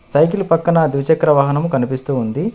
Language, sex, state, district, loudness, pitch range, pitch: Telugu, male, Telangana, Adilabad, -16 LUFS, 140-165 Hz, 155 Hz